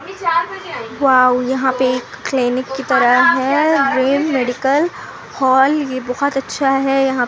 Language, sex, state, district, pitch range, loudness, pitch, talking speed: Hindi, female, Bihar, Kishanganj, 255-285 Hz, -15 LUFS, 270 Hz, 140 wpm